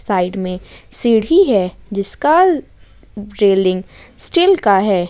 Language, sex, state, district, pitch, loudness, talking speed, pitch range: Hindi, female, Jharkhand, Ranchi, 205 Hz, -15 LUFS, 105 wpm, 190-295 Hz